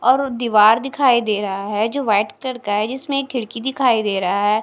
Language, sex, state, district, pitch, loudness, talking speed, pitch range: Hindi, female, Punjab, Fazilka, 230 Hz, -18 LUFS, 235 wpm, 210-260 Hz